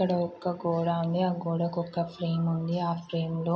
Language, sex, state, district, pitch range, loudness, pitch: Telugu, female, Andhra Pradesh, Guntur, 170-175 Hz, -29 LUFS, 170 Hz